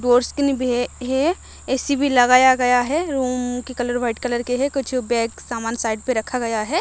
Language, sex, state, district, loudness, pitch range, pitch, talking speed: Hindi, female, Odisha, Malkangiri, -20 LUFS, 245-265 Hz, 250 Hz, 185 wpm